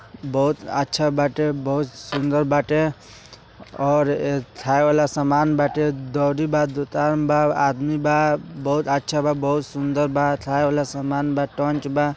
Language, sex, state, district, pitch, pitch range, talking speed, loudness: Bhojpuri, male, Bihar, East Champaran, 145 Hz, 140-150 Hz, 115 wpm, -21 LUFS